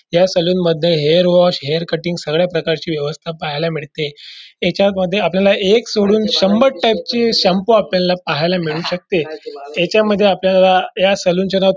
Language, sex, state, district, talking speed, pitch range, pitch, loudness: Marathi, male, Maharashtra, Dhule, 160 wpm, 165-200 Hz, 180 Hz, -15 LUFS